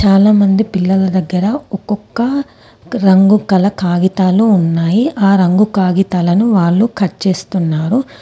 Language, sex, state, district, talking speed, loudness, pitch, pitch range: Telugu, female, Telangana, Komaram Bheem, 100 wpm, -13 LUFS, 195 Hz, 185-210 Hz